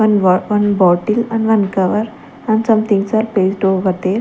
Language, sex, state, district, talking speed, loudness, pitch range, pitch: English, female, Chandigarh, Chandigarh, 185 wpm, -15 LUFS, 190-220 Hz, 210 Hz